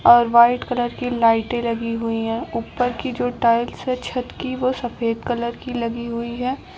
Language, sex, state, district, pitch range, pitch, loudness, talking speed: Hindi, female, Uttar Pradesh, Lucknow, 230-250 Hz, 240 Hz, -21 LUFS, 195 wpm